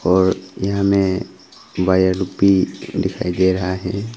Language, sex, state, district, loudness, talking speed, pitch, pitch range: Hindi, male, Arunachal Pradesh, Longding, -18 LUFS, 130 wpm, 95 Hz, 95-100 Hz